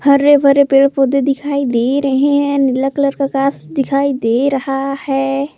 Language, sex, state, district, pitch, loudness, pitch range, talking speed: Hindi, female, Jharkhand, Palamu, 275 Hz, -14 LUFS, 270-280 Hz, 170 wpm